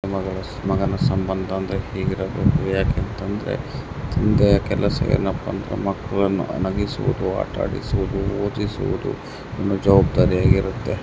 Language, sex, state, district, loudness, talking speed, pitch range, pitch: Kannada, male, Karnataka, Mysore, -22 LUFS, 65 wpm, 95-105 Hz, 100 Hz